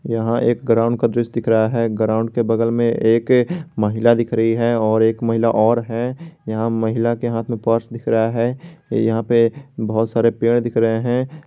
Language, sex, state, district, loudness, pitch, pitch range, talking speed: Hindi, male, Jharkhand, Garhwa, -18 LUFS, 115 Hz, 115-120 Hz, 200 wpm